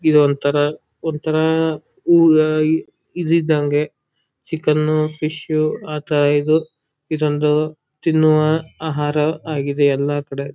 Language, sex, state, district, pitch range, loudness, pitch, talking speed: Kannada, male, Karnataka, Dharwad, 145-160 Hz, -18 LUFS, 155 Hz, 85 wpm